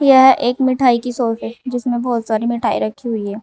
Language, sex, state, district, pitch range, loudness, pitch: Hindi, female, Uttar Pradesh, Saharanpur, 230-255 Hz, -17 LUFS, 245 Hz